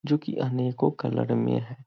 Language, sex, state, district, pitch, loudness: Hindi, male, Bihar, Muzaffarpur, 125 Hz, -27 LUFS